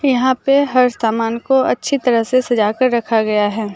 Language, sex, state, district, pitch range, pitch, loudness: Hindi, female, Jharkhand, Deoghar, 225-260 Hz, 240 Hz, -15 LUFS